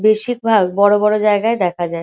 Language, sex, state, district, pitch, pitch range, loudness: Bengali, female, West Bengal, Kolkata, 210 Hz, 185-215 Hz, -15 LUFS